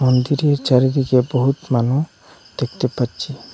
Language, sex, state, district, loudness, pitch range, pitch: Bengali, male, Assam, Hailakandi, -18 LUFS, 125-140 Hz, 130 Hz